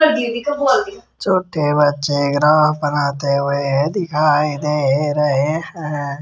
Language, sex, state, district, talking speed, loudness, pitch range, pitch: Hindi, male, Rajasthan, Jaipur, 85 wpm, -17 LUFS, 145-160 Hz, 150 Hz